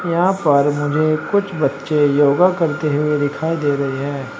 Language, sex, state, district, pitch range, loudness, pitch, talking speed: Hindi, male, Uttar Pradesh, Shamli, 140-165 Hz, -17 LUFS, 150 Hz, 165 wpm